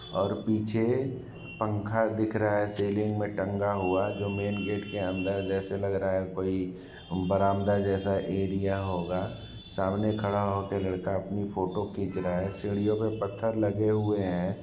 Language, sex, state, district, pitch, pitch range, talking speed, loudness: Hindi, male, Bihar, Sitamarhi, 100 Hz, 95-105 Hz, 165 wpm, -30 LUFS